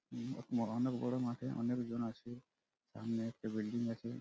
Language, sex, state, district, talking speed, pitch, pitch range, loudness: Bengali, male, West Bengal, Purulia, 140 wpm, 120 Hz, 115-120 Hz, -40 LUFS